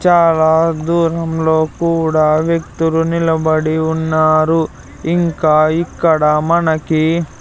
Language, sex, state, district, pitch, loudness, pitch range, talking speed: Telugu, male, Andhra Pradesh, Sri Satya Sai, 160 Hz, -14 LUFS, 155-165 Hz, 75 wpm